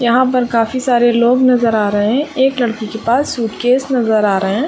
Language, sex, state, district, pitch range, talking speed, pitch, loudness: Hindi, female, Jharkhand, Sahebganj, 225-255 Hz, 230 wpm, 240 Hz, -14 LUFS